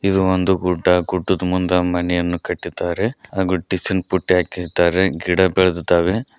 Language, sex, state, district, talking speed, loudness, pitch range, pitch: Kannada, male, Karnataka, Koppal, 130 wpm, -19 LUFS, 90-95 Hz, 90 Hz